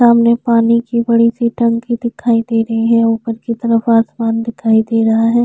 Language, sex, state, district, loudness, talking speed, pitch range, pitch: Hindi, female, Uttar Pradesh, Jyotiba Phule Nagar, -14 LUFS, 185 wpm, 230-235 Hz, 230 Hz